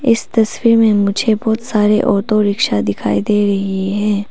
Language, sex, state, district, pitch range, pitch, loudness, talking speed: Hindi, female, Arunachal Pradesh, Papum Pare, 200-220 Hz, 210 Hz, -15 LUFS, 165 wpm